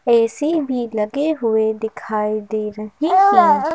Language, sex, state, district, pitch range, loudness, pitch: Hindi, female, Madhya Pradesh, Bhopal, 215-315 Hz, -18 LUFS, 230 Hz